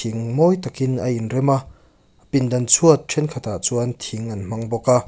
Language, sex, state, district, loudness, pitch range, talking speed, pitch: Mizo, male, Mizoram, Aizawl, -20 LUFS, 115-135 Hz, 165 wpm, 125 Hz